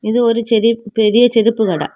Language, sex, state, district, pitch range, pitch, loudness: Tamil, female, Tamil Nadu, Kanyakumari, 215-235 Hz, 225 Hz, -14 LUFS